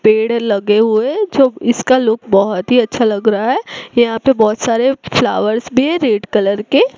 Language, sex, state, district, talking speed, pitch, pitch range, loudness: Hindi, female, Gujarat, Gandhinagar, 190 wpm, 230 Hz, 215-255 Hz, -14 LUFS